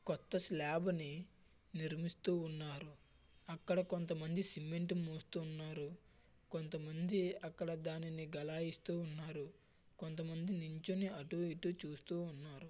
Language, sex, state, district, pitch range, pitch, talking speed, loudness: Telugu, male, Andhra Pradesh, Visakhapatnam, 155-175 Hz, 165 Hz, 115 wpm, -43 LUFS